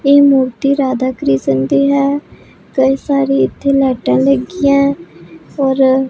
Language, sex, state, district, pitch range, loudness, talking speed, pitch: Punjabi, female, Punjab, Pathankot, 255-280 Hz, -13 LUFS, 130 wpm, 270 Hz